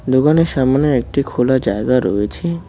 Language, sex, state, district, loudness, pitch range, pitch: Bengali, male, West Bengal, Cooch Behar, -16 LUFS, 125-150 Hz, 130 Hz